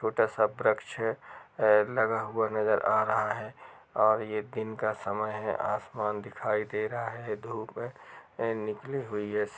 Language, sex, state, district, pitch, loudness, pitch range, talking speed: Hindi, male, Uttar Pradesh, Jalaun, 110 Hz, -30 LUFS, 105-115 Hz, 155 wpm